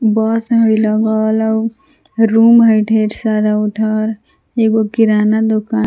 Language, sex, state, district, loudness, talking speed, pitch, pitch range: Magahi, female, Jharkhand, Palamu, -13 LUFS, 110 wpm, 220 Hz, 215-225 Hz